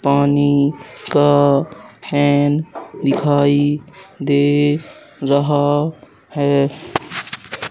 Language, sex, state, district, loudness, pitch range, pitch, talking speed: Hindi, male, Madhya Pradesh, Katni, -17 LUFS, 140-145 Hz, 145 Hz, 55 wpm